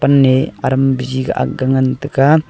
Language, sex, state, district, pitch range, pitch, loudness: Wancho, male, Arunachal Pradesh, Longding, 130-140 Hz, 135 Hz, -15 LUFS